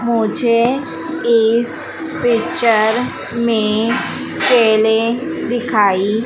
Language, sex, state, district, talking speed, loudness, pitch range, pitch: Hindi, female, Madhya Pradesh, Dhar, 55 wpm, -16 LUFS, 220-240 Hz, 230 Hz